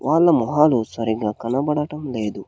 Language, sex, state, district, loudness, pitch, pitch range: Telugu, male, Telangana, Hyderabad, -20 LUFS, 130 Hz, 110-150 Hz